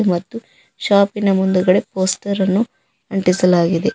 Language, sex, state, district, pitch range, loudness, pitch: Kannada, female, Karnataka, Koppal, 180-200 Hz, -17 LUFS, 190 Hz